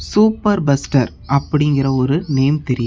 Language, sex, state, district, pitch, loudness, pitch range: Tamil, male, Tamil Nadu, Namakkal, 140 Hz, -16 LUFS, 135-150 Hz